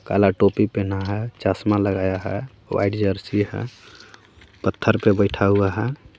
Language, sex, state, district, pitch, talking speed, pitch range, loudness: Hindi, female, Jharkhand, Garhwa, 100 Hz, 145 wpm, 100-105 Hz, -21 LUFS